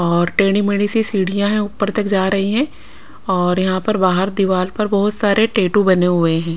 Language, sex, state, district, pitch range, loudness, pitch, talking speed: Hindi, female, Punjab, Pathankot, 185-205 Hz, -16 LUFS, 200 Hz, 210 wpm